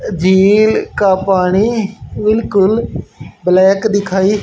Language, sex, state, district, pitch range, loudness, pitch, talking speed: Hindi, female, Haryana, Charkhi Dadri, 190-215 Hz, -13 LUFS, 200 Hz, 80 wpm